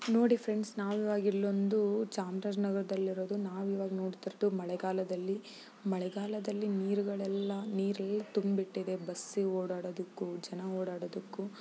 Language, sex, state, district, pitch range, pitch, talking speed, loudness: Kannada, female, Karnataka, Chamarajanagar, 190-205 Hz, 195 Hz, 115 wpm, -35 LUFS